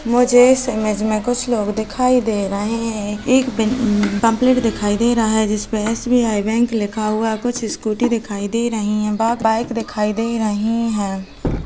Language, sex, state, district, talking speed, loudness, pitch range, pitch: Hindi, female, Chhattisgarh, Kabirdham, 180 wpm, -18 LUFS, 210-235 Hz, 225 Hz